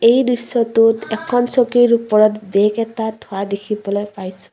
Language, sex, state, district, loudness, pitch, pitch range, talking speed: Assamese, female, Assam, Kamrup Metropolitan, -16 LUFS, 220 Hz, 205-235 Hz, 130 wpm